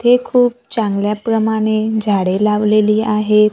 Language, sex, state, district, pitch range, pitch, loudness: Marathi, female, Maharashtra, Gondia, 210-225 Hz, 215 Hz, -15 LUFS